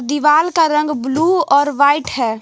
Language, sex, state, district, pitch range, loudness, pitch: Hindi, female, Jharkhand, Garhwa, 280-310 Hz, -14 LUFS, 295 Hz